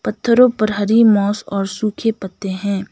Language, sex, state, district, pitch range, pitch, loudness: Hindi, female, Sikkim, Gangtok, 195-225 Hz, 205 Hz, -16 LUFS